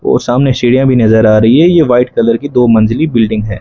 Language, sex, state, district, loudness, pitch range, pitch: Hindi, male, Rajasthan, Bikaner, -9 LUFS, 110-130 Hz, 120 Hz